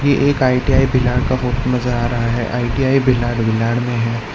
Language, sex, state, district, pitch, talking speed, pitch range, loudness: Hindi, male, Gujarat, Valsad, 125 Hz, 205 wpm, 120-130 Hz, -17 LUFS